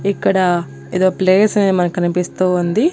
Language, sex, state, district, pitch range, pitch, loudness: Telugu, female, Andhra Pradesh, Annamaya, 175-195 Hz, 185 Hz, -16 LUFS